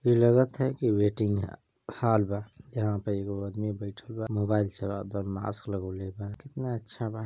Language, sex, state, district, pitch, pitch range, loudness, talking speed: Bhojpuri, male, Uttar Pradesh, Ghazipur, 105 Hz, 100-115 Hz, -30 LUFS, 175 wpm